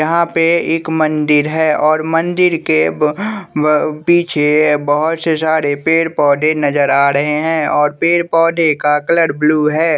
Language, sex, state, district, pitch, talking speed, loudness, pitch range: Hindi, male, Bihar, West Champaran, 155 Hz, 155 wpm, -13 LUFS, 150-165 Hz